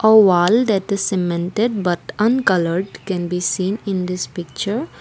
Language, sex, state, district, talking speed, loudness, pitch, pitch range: English, female, Assam, Kamrup Metropolitan, 155 wpm, -19 LUFS, 190 Hz, 180-215 Hz